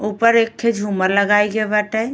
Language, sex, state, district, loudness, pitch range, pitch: Bhojpuri, female, Uttar Pradesh, Ghazipur, -17 LUFS, 205-230 Hz, 215 Hz